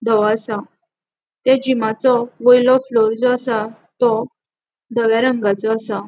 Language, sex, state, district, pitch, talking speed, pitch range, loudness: Konkani, female, Goa, North and South Goa, 230 Hz, 120 wpm, 220-250 Hz, -17 LUFS